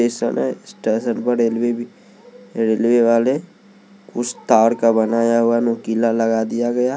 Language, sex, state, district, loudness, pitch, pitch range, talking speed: Hindi, male, Maharashtra, Mumbai Suburban, -18 LUFS, 120 Hz, 115-130 Hz, 145 wpm